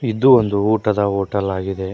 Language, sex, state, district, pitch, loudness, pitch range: Kannada, male, Karnataka, Koppal, 100 Hz, -17 LUFS, 95-110 Hz